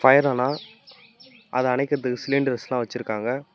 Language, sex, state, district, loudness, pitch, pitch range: Tamil, male, Tamil Nadu, Namakkal, -24 LUFS, 135 Hz, 125-150 Hz